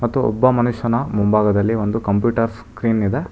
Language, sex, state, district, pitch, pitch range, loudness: Kannada, male, Karnataka, Bangalore, 115 Hz, 105-120 Hz, -18 LUFS